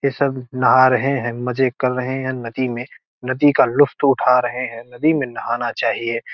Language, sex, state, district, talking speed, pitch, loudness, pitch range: Hindi, male, Bihar, Gopalganj, 200 wpm, 130 Hz, -18 LUFS, 120-135 Hz